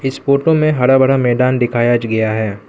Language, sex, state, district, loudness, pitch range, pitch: Hindi, male, Arunachal Pradesh, Lower Dibang Valley, -14 LUFS, 115-135 Hz, 125 Hz